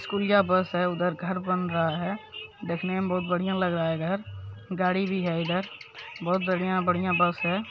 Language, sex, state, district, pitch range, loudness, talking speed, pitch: Maithili, male, Bihar, Supaul, 175-190 Hz, -27 LUFS, 180 wpm, 185 Hz